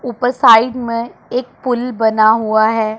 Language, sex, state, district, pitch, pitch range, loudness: Hindi, female, Punjab, Pathankot, 230 Hz, 220-245 Hz, -14 LUFS